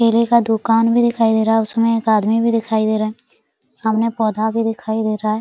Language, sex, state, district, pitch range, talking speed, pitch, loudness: Hindi, female, Bihar, Araria, 220-230 Hz, 235 wpm, 225 Hz, -17 LUFS